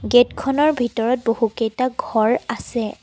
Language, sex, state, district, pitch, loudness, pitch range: Assamese, female, Assam, Kamrup Metropolitan, 240 Hz, -20 LUFS, 230-255 Hz